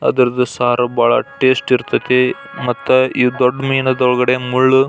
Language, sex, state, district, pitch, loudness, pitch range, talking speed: Kannada, male, Karnataka, Belgaum, 125 Hz, -15 LUFS, 125-130 Hz, 125 wpm